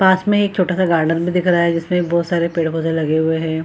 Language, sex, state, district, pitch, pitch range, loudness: Hindi, female, Bihar, Purnia, 170 Hz, 165-180 Hz, -17 LUFS